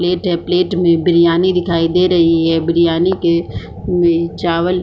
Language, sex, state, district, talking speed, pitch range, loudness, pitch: Hindi, female, Bihar, East Champaran, 175 wpm, 170-180 Hz, -14 LUFS, 170 Hz